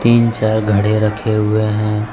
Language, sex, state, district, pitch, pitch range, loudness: Hindi, male, Jharkhand, Deoghar, 110 Hz, 105-110 Hz, -15 LUFS